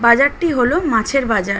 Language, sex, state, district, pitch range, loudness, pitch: Bengali, female, West Bengal, Dakshin Dinajpur, 225-285 Hz, -16 LUFS, 255 Hz